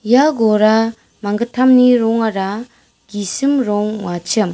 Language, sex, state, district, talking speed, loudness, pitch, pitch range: Garo, female, Meghalaya, West Garo Hills, 90 wpm, -15 LUFS, 220 Hz, 205-240 Hz